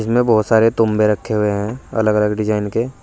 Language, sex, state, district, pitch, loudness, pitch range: Hindi, male, Uttar Pradesh, Saharanpur, 110 Hz, -17 LUFS, 105-115 Hz